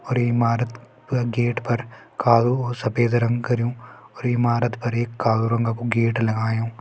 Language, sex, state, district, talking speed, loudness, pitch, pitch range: Hindi, male, Uttarakhand, Tehri Garhwal, 165 wpm, -22 LUFS, 120 Hz, 115-120 Hz